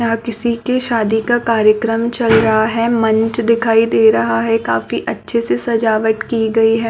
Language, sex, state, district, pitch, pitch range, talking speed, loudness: Hindi, female, Chhattisgarh, Balrampur, 225 Hz, 220-230 Hz, 190 wpm, -15 LUFS